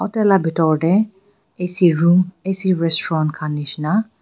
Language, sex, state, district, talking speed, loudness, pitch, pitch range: Nagamese, female, Nagaland, Dimapur, 130 wpm, -17 LUFS, 180 Hz, 160-195 Hz